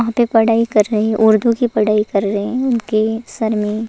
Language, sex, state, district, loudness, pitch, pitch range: Hindi, female, Goa, North and South Goa, -16 LUFS, 220 Hz, 215-230 Hz